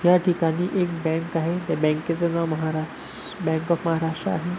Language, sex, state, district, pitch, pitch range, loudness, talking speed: Marathi, male, Maharashtra, Pune, 165 Hz, 160-175 Hz, -24 LUFS, 170 wpm